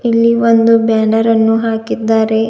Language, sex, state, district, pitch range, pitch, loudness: Kannada, female, Karnataka, Bidar, 220-230 Hz, 225 Hz, -12 LUFS